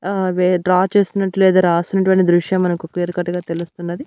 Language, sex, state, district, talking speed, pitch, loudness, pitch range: Telugu, female, Andhra Pradesh, Annamaya, 160 wpm, 180 Hz, -17 LUFS, 175-190 Hz